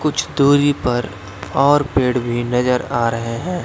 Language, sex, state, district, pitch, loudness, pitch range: Hindi, male, Uttar Pradesh, Lalitpur, 125 Hz, -17 LUFS, 120-145 Hz